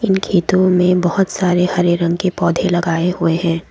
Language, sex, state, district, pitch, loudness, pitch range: Hindi, female, Assam, Kamrup Metropolitan, 175 Hz, -15 LUFS, 170-185 Hz